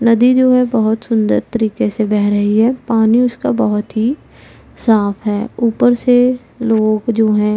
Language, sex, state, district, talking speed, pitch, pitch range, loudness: Hindi, female, Punjab, Pathankot, 165 wpm, 225 Hz, 215-245 Hz, -14 LUFS